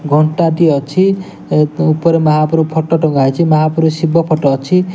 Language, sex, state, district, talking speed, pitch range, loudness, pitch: Odia, male, Odisha, Nuapada, 145 wpm, 155-165 Hz, -13 LUFS, 160 Hz